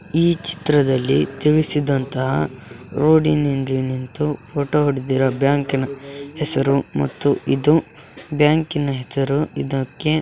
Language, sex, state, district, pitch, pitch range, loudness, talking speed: Kannada, male, Karnataka, Dharwad, 140 Hz, 135-150 Hz, -19 LUFS, 90 wpm